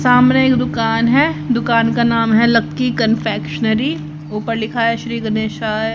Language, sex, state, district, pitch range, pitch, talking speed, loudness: Hindi, female, Haryana, Charkhi Dadri, 220-240 Hz, 230 Hz, 150 wpm, -16 LUFS